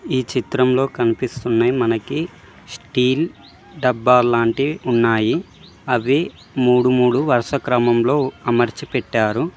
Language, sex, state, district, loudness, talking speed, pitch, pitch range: Telugu, male, Telangana, Mahabubabad, -18 LUFS, 95 wpm, 125 Hz, 120-130 Hz